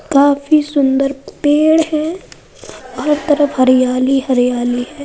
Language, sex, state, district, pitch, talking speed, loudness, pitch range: Hindi, female, Uttar Pradesh, Budaun, 280 Hz, 105 wpm, -14 LUFS, 255-300 Hz